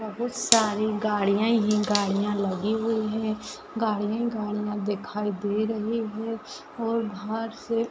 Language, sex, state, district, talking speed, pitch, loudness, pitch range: Hindi, female, Maharashtra, Pune, 145 wpm, 215 Hz, -26 LUFS, 210-225 Hz